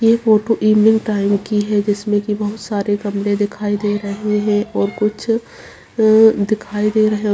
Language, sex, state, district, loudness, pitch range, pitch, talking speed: Hindi, female, Chhattisgarh, Kabirdham, -16 LUFS, 205-215 Hz, 210 Hz, 165 wpm